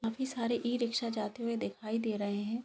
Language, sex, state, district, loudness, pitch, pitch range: Hindi, female, Bihar, Jahanabad, -35 LUFS, 230 Hz, 220-235 Hz